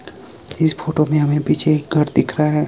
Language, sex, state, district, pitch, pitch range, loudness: Hindi, male, Himachal Pradesh, Shimla, 150 Hz, 150-155 Hz, -17 LUFS